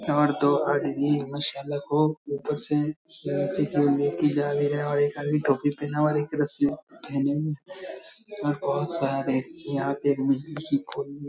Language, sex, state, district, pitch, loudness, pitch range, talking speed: Hindi, male, Bihar, Darbhanga, 145 Hz, -26 LUFS, 140-150 Hz, 175 wpm